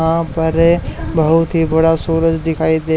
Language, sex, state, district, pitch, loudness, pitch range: Hindi, male, Haryana, Charkhi Dadri, 160 Hz, -15 LUFS, 160-165 Hz